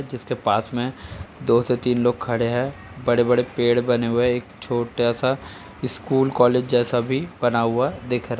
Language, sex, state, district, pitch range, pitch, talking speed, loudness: Hindi, male, Uttar Pradesh, Etah, 120-125 Hz, 120 Hz, 185 wpm, -22 LUFS